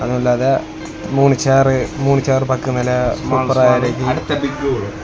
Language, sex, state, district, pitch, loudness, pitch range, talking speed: Tamil, male, Tamil Nadu, Kanyakumari, 130 Hz, -16 LUFS, 125-135 Hz, 95 wpm